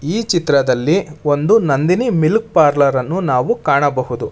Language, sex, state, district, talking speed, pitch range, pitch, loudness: Kannada, male, Karnataka, Bangalore, 110 wpm, 140-185 Hz, 155 Hz, -15 LUFS